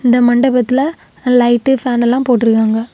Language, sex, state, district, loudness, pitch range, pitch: Tamil, female, Tamil Nadu, Kanyakumari, -13 LUFS, 240-260 Hz, 245 Hz